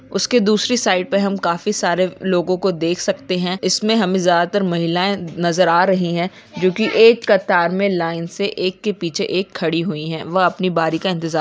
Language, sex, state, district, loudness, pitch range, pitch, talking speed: Hindi, female, Uttarakhand, Uttarkashi, -18 LUFS, 170-200 Hz, 185 Hz, 210 wpm